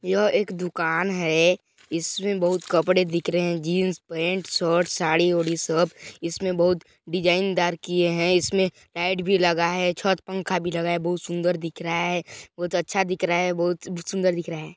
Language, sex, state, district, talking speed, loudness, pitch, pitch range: Hindi, male, Chhattisgarh, Balrampur, 190 wpm, -24 LUFS, 175 Hz, 170-185 Hz